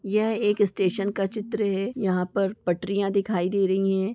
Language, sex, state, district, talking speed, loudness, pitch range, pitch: Hindi, female, Bihar, East Champaran, 190 wpm, -25 LUFS, 190-210 Hz, 200 Hz